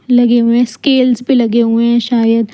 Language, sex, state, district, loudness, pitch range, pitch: Hindi, female, Chandigarh, Chandigarh, -11 LUFS, 230-245 Hz, 235 Hz